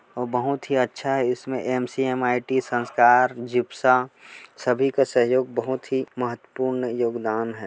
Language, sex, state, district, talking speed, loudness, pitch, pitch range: Hindi, male, Chhattisgarh, Korba, 115 wpm, -23 LUFS, 125 Hz, 120-130 Hz